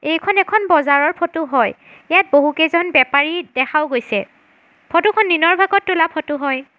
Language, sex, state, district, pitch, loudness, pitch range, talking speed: Assamese, female, Assam, Sonitpur, 320 Hz, -16 LUFS, 285-350 Hz, 150 wpm